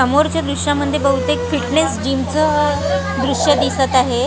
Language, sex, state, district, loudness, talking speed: Marathi, female, Maharashtra, Gondia, -16 LUFS, 110 wpm